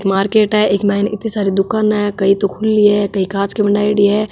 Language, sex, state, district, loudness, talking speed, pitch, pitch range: Marwari, female, Rajasthan, Nagaur, -15 LUFS, 235 wpm, 205 Hz, 200-210 Hz